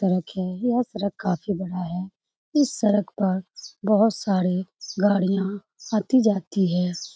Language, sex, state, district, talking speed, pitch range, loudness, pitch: Hindi, female, Bihar, Saran, 125 wpm, 185-215 Hz, -24 LUFS, 195 Hz